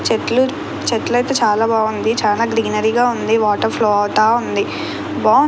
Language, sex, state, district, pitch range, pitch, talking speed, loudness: Telugu, female, Andhra Pradesh, Krishna, 215-240 Hz, 225 Hz, 155 wpm, -16 LUFS